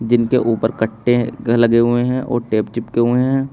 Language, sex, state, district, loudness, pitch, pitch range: Hindi, male, Uttar Pradesh, Shamli, -17 LUFS, 120 Hz, 115-125 Hz